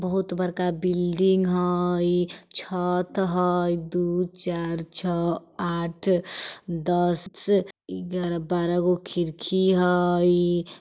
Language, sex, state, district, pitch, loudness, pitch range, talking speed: Bajjika, female, Bihar, Vaishali, 180 Hz, -24 LUFS, 175-180 Hz, 90 wpm